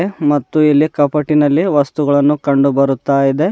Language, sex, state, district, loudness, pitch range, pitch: Kannada, male, Karnataka, Bidar, -13 LUFS, 140-150 Hz, 145 Hz